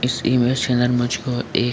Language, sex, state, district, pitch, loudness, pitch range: Hindi, male, Jharkhand, Sahebganj, 125 Hz, -20 LUFS, 120-125 Hz